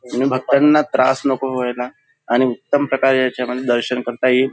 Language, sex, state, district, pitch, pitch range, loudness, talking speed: Marathi, male, Maharashtra, Nagpur, 130 Hz, 125-135 Hz, -17 LUFS, 160 wpm